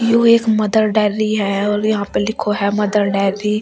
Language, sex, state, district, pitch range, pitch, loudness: Hindi, female, Delhi, New Delhi, 205-215 Hz, 210 Hz, -16 LUFS